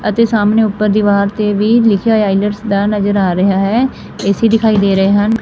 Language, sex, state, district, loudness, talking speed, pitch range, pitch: Punjabi, female, Punjab, Fazilka, -12 LUFS, 190 wpm, 200-220 Hz, 210 Hz